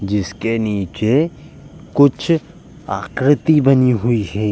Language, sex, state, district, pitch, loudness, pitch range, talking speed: Hindi, male, Uttar Pradesh, Jalaun, 125 Hz, -17 LUFS, 105-145 Hz, 95 wpm